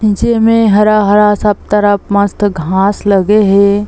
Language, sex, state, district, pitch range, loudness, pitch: Chhattisgarhi, female, Chhattisgarh, Bilaspur, 200-210 Hz, -10 LUFS, 205 Hz